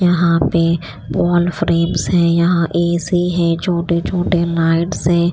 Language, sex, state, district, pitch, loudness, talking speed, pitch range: Hindi, female, Chandigarh, Chandigarh, 170 Hz, -16 LUFS, 135 wpm, 165-175 Hz